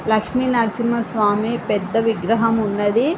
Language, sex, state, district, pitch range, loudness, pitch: Telugu, female, Andhra Pradesh, Srikakulam, 210-235 Hz, -19 LUFS, 225 Hz